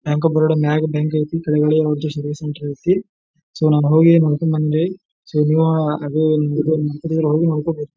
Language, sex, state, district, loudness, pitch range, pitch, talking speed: Kannada, male, Karnataka, Dharwad, -17 LUFS, 150-160 Hz, 155 Hz, 145 wpm